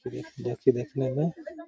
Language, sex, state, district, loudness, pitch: Hindi, male, Bihar, Gaya, -29 LUFS, 145 Hz